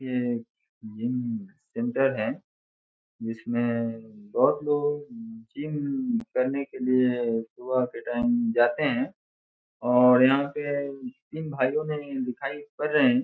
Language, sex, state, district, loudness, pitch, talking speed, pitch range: Hindi, male, Bihar, Saran, -26 LUFS, 130 Hz, 120 wpm, 120-150 Hz